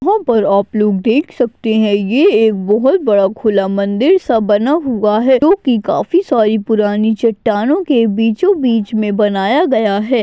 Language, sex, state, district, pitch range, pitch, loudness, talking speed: Hindi, female, Maharashtra, Aurangabad, 210-260 Hz, 220 Hz, -13 LUFS, 165 wpm